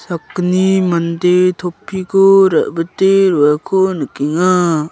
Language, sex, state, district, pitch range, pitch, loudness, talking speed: Garo, male, Meghalaya, South Garo Hills, 170-190 Hz, 180 Hz, -13 LUFS, 75 wpm